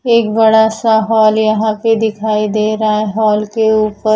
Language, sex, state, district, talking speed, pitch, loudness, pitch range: Hindi, female, Odisha, Khordha, 175 wpm, 220 Hz, -13 LUFS, 215-220 Hz